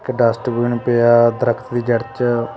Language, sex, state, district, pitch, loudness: Punjabi, male, Punjab, Kapurthala, 120 Hz, -17 LUFS